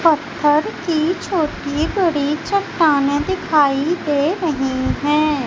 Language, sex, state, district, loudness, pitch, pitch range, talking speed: Hindi, female, Madhya Pradesh, Umaria, -18 LUFS, 305 Hz, 290-335 Hz, 100 wpm